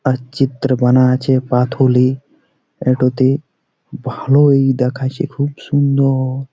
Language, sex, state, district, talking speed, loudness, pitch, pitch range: Bengali, male, West Bengal, Jalpaiguri, 85 wpm, -15 LUFS, 130 Hz, 130-135 Hz